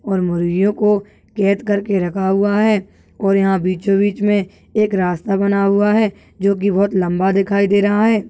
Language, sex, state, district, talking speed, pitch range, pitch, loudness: Hindi, female, Maharashtra, Nagpur, 190 wpm, 190-205 Hz, 200 Hz, -16 LUFS